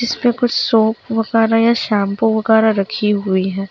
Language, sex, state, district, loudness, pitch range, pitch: Hindi, female, Chhattisgarh, Kabirdham, -15 LUFS, 205-230 Hz, 220 Hz